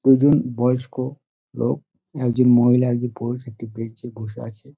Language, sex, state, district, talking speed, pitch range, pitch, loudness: Bengali, male, West Bengal, Dakshin Dinajpur, 165 wpm, 120-130 Hz, 125 Hz, -21 LUFS